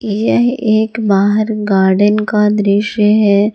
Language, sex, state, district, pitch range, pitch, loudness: Hindi, female, Jharkhand, Garhwa, 205-215 Hz, 210 Hz, -12 LUFS